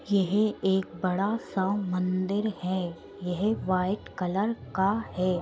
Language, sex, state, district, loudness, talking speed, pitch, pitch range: Hindi, female, Uttar Pradesh, Budaun, -28 LUFS, 120 wpm, 190 Hz, 185-205 Hz